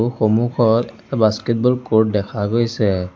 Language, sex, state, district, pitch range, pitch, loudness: Assamese, male, Assam, Sonitpur, 110-120 Hz, 110 Hz, -18 LUFS